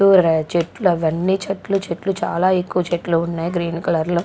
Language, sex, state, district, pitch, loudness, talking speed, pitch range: Telugu, female, Andhra Pradesh, Guntur, 175 Hz, -19 LUFS, 185 wpm, 170-185 Hz